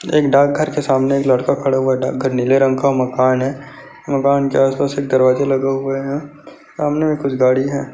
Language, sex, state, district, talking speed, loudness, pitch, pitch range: Hindi, male, Chhattisgarh, Bastar, 210 wpm, -16 LUFS, 135 Hz, 130-140 Hz